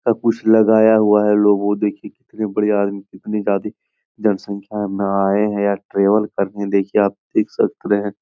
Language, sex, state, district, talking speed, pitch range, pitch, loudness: Hindi, male, Bihar, Jahanabad, 180 wpm, 100-105 Hz, 105 Hz, -17 LUFS